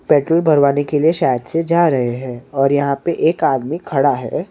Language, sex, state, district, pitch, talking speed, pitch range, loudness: Hindi, male, Maharashtra, Mumbai Suburban, 145 Hz, 215 wpm, 135-165 Hz, -16 LUFS